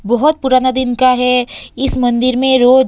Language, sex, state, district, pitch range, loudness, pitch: Hindi, female, Uttar Pradesh, Varanasi, 250-260 Hz, -13 LUFS, 255 Hz